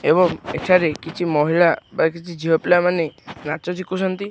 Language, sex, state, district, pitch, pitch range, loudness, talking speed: Odia, male, Odisha, Khordha, 170 Hz, 160-180 Hz, -20 LUFS, 155 wpm